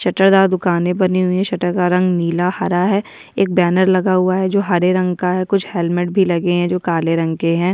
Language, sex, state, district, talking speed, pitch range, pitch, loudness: Hindi, female, Chhattisgarh, Sukma, 240 wpm, 175-190 Hz, 180 Hz, -16 LUFS